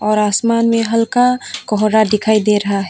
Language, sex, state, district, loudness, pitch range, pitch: Hindi, female, Tripura, West Tripura, -14 LUFS, 210-230 Hz, 215 Hz